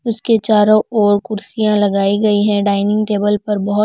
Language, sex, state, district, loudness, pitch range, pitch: Hindi, female, Bihar, Kaimur, -15 LUFS, 205-215 Hz, 210 Hz